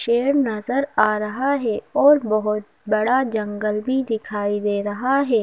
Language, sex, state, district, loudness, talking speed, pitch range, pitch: Hindi, female, Madhya Pradesh, Bhopal, -21 LUFS, 155 wpm, 210-265 Hz, 225 Hz